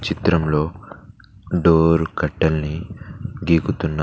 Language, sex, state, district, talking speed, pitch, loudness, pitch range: Telugu, male, Telangana, Mahabubabad, 75 wpm, 85 Hz, -19 LUFS, 80-100 Hz